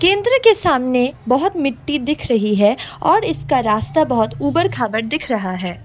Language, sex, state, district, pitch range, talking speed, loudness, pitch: Hindi, female, Assam, Kamrup Metropolitan, 225-315 Hz, 175 wpm, -17 LUFS, 265 Hz